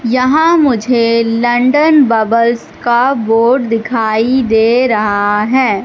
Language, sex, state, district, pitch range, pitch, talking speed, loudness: Hindi, female, Madhya Pradesh, Katni, 225-255 Hz, 235 Hz, 105 wpm, -11 LUFS